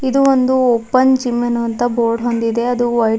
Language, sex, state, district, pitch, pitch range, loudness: Kannada, female, Karnataka, Bidar, 240 Hz, 235-255 Hz, -15 LUFS